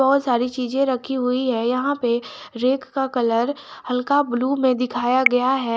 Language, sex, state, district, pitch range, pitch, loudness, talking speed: Hindi, female, Jharkhand, Garhwa, 245-270 Hz, 255 Hz, -21 LUFS, 175 wpm